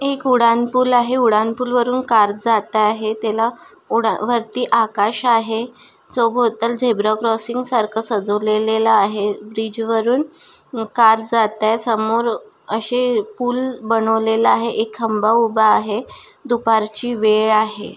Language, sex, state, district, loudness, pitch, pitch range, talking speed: Marathi, female, Maharashtra, Nagpur, -17 LUFS, 225 Hz, 220-240 Hz, 130 wpm